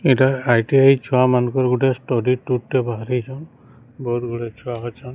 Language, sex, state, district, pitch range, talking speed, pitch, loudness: Odia, male, Odisha, Sambalpur, 120-130 Hz, 150 wpm, 125 Hz, -19 LUFS